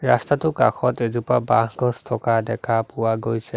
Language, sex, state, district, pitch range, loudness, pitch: Assamese, male, Assam, Sonitpur, 115-125 Hz, -21 LUFS, 115 Hz